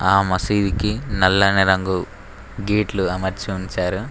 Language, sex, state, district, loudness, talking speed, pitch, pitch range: Telugu, male, Telangana, Mahabubabad, -19 LUFS, 100 wpm, 95 Hz, 95-100 Hz